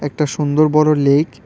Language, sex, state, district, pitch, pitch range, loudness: Bengali, male, Tripura, West Tripura, 150 Hz, 145-155 Hz, -15 LUFS